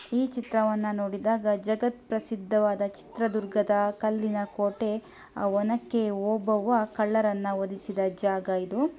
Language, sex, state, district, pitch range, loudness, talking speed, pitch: Kannada, female, Karnataka, Mysore, 200-225 Hz, -28 LUFS, 95 wpm, 215 Hz